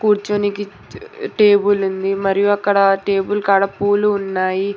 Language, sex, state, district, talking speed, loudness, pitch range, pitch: Telugu, female, Telangana, Hyderabad, 115 wpm, -16 LUFS, 195-205 Hz, 200 Hz